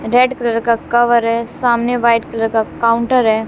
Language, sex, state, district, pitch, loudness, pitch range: Hindi, female, Bihar, West Champaran, 235 Hz, -15 LUFS, 230-240 Hz